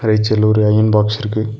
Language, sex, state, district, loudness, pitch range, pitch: Tamil, male, Tamil Nadu, Nilgiris, -14 LUFS, 105-110 Hz, 110 Hz